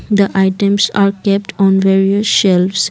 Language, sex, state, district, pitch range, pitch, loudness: English, female, Assam, Kamrup Metropolitan, 195-200 Hz, 195 Hz, -13 LUFS